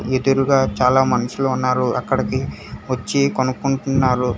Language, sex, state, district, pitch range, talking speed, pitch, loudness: Telugu, male, Telangana, Hyderabad, 125-135 Hz, 95 wpm, 130 Hz, -19 LUFS